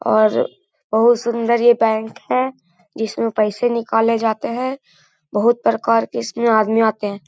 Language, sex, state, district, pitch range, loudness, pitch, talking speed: Hindi, male, Bihar, Gaya, 220-240 Hz, -18 LUFS, 230 Hz, 150 wpm